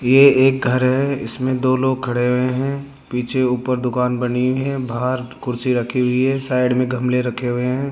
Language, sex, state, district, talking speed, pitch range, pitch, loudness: Hindi, male, Rajasthan, Jaipur, 195 wpm, 125-130 Hz, 125 Hz, -19 LUFS